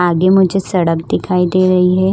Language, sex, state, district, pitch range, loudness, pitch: Hindi, female, Goa, North and South Goa, 180-185 Hz, -13 LUFS, 185 Hz